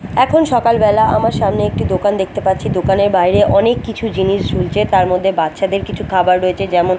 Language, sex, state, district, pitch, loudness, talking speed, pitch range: Bengali, female, Bihar, Katihar, 195 Hz, -14 LUFS, 190 wpm, 185-205 Hz